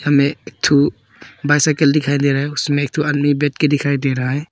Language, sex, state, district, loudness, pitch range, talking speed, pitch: Hindi, male, Arunachal Pradesh, Papum Pare, -16 LUFS, 140-145 Hz, 240 wpm, 145 Hz